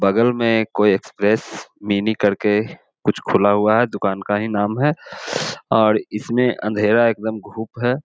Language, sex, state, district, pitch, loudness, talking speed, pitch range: Hindi, male, Bihar, Jamui, 105 Hz, -19 LUFS, 165 wpm, 105-115 Hz